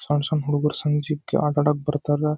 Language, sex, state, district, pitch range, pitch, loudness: Kannada, male, Karnataka, Dharwad, 145-150 Hz, 150 Hz, -23 LUFS